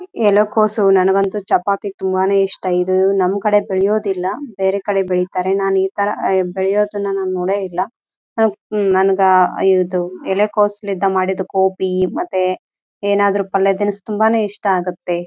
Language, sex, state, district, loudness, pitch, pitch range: Kannada, female, Karnataka, Raichur, -17 LUFS, 195 Hz, 185-205 Hz